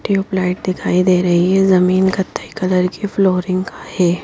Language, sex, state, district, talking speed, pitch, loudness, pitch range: Hindi, female, Bihar, Katihar, 170 wpm, 185 Hz, -16 LUFS, 180-190 Hz